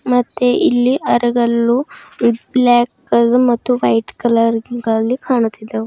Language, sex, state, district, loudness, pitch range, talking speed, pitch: Kannada, female, Karnataka, Bidar, -15 LUFS, 230-250 Hz, 110 wpm, 240 Hz